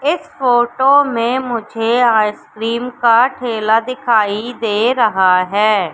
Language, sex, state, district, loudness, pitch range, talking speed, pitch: Hindi, female, Madhya Pradesh, Katni, -15 LUFS, 215-245 Hz, 110 wpm, 230 Hz